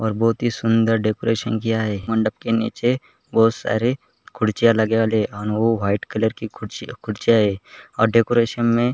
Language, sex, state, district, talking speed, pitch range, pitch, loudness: Hindi, male, Maharashtra, Aurangabad, 180 wpm, 110-115 Hz, 115 Hz, -20 LUFS